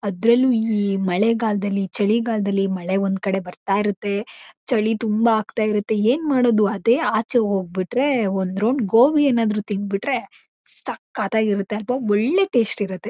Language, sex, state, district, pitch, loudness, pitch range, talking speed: Kannada, female, Karnataka, Mysore, 215 Hz, -20 LUFS, 200-235 Hz, 125 wpm